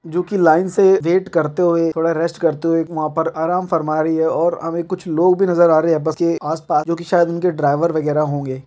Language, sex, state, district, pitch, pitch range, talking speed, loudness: Hindi, male, Bihar, Darbhanga, 165 Hz, 160-175 Hz, 250 wpm, -17 LUFS